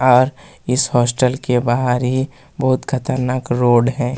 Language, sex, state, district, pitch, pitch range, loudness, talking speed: Hindi, male, Chhattisgarh, Kabirdham, 125 Hz, 125-130 Hz, -17 LUFS, 160 wpm